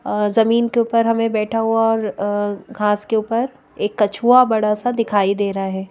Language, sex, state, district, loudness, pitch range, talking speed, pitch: Hindi, female, Madhya Pradesh, Bhopal, -18 LUFS, 205-230 Hz, 180 wpm, 220 Hz